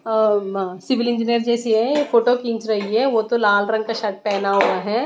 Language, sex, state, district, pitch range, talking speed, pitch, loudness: Hindi, female, Odisha, Malkangiri, 205-235 Hz, 225 wpm, 225 Hz, -19 LUFS